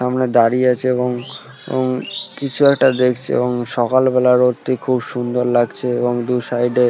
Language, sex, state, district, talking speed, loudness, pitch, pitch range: Bengali, male, West Bengal, Purulia, 165 wpm, -17 LUFS, 125 Hz, 120-130 Hz